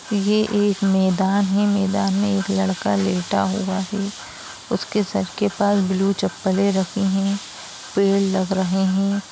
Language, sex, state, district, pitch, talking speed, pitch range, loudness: Hindi, female, Bihar, Jamui, 195 Hz, 150 wpm, 190-200 Hz, -20 LUFS